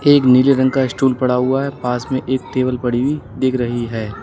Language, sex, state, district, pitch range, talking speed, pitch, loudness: Hindi, male, Uttar Pradesh, Lalitpur, 125-135 Hz, 240 wpm, 130 Hz, -17 LUFS